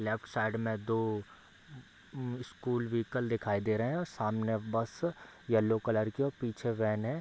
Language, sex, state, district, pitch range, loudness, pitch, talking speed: Hindi, male, Bihar, Bhagalpur, 110-125 Hz, -34 LUFS, 115 Hz, 165 wpm